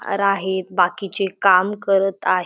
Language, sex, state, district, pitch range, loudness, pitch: Marathi, female, Maharashtra, Dhule, 185-195 Hz, -19 LUFS, 195 Hz